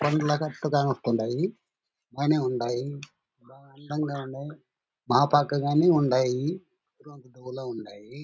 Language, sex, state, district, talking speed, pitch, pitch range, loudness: Telugu, male, Andhra Pradesh, Anantapur, 80 wpm, 140 Hz, 130-150 Hz, -26 LUFS